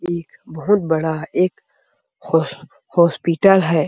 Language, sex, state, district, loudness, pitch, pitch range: Hindi, male, Chhattisgarh, Sarguja, -18 LUFS, 170 Hz, 160-195 Hz